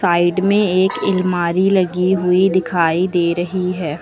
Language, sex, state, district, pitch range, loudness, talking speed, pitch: Hindi, female, Uttar Pradesh, Lucknow, 175-190 Hz, -16 LUFS, 150 wpm, 180 Hz